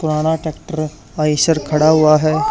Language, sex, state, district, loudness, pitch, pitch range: Hindi, male, Haryana, Charkhi Dadri, -16 LUFS, 155 Hz, 155-160 Hz